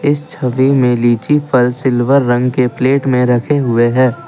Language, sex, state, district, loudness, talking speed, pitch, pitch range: Hindi, male, Assam, Kamrup Metropolitan, -13 LUFS, 170 wpm, 130 Hz, 125-140 Hz